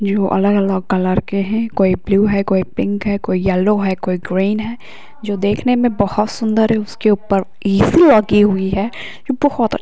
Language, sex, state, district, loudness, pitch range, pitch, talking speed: Hindi, female, Uttar Pradesh, Hamirpur, -16 LUFS, 195-220 Hz, 205 Hz, 215 wpm